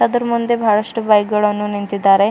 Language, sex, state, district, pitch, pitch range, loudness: Kannada, female, Karnataka, Bidar, 210 Hz, 205-225 Hz, -16 LUFS